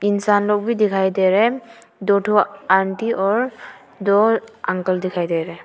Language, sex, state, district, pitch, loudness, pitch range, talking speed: Hindi, female, Arunachal Pradesh, Papum Pare, 205 Hz, -19 LUFS, 190-225 Hz, 180 wpm